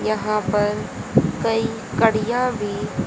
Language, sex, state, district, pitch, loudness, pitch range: Hindi, female, Haryana, Jhajjar, 215 Hz, -21 LUFS, 210-225 Hz